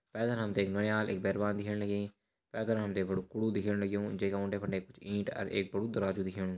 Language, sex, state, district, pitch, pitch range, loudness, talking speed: Hindi, male, Uttarakhand, Uttarkashi, 100 Hz, 95-105 Hz, -35 LUFS, 210 wpm